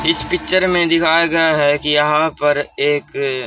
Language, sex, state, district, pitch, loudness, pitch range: Hindi, male, Haryana, Charkhi Dadri, 150 Hz, -15 LUFS, 145-165 Hz